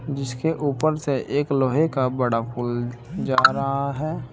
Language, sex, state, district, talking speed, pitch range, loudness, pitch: Hindi, male, Uttar Pradesh, Saharanpur, 150 wpm, 125-145 Hz, -23 LUFS, 135 Hz